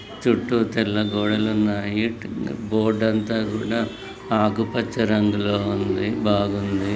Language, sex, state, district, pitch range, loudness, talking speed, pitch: Telugu, male, Andhra Pradesh, Srikakulam, 105-115 Hz, -22 LUFS, 95 wpm, 110 Hz